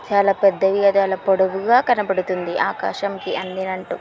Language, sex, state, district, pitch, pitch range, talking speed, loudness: Telugu, female, Andhra Pradesh, Srikakulam, 195 Hz, 190-200 Hz, 120 wpm, -19 LUFS